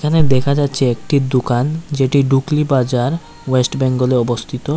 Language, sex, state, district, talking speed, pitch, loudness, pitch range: Bengali, male, Tripura, West Tripura, 150 wpm, 135 Hz, -16 LUFS, 125-145 Hz